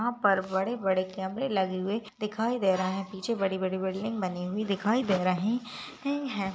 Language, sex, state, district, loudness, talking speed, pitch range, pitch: Hindi, female, Goa, North and South Goa, -29 LUFS, 190 wpm, 190-230 Hz, 195 Hz